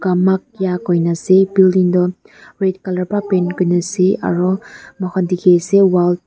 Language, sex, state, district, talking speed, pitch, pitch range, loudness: Nagamese, female, Nagaland, Dimapur, 200 wpm, 185 Hz, 180-190 Hz, -15 LUFS